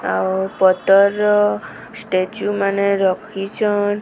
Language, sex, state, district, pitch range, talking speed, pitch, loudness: Odia, female, Odisha, Sambalpur, 190-205 Hz, 90 wpm, 200 Hz, -17 LUFS